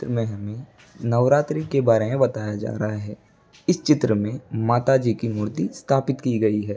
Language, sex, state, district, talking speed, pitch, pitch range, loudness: Hindi, male, Uttar Pradesh, Etah, 205 wpm, 115 Hz, 110-135 Hz, -22 LUFS